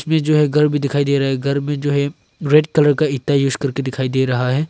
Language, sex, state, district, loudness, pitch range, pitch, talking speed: Hindi, male, Arunachal Pradesh, Longding, -17 LUFS, 135-150 Hz, 140 Hz, 295 wpm